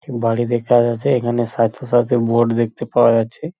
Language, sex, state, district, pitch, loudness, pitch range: Bengali, male, West Bengal, Purulia, 120 Hz, -17 LUFS, 115-120 Hz